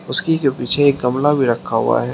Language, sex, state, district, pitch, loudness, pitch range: Hindi, male, Uttar Pradesh, Shamli, 135 Hz, -17 LUFS, 125-145 Hz